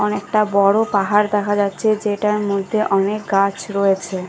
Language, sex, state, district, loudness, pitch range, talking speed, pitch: Bengali, female, Bihar, Katihar, -18 LUFS, 195-210 Hz, 155 wpm, 205 Hz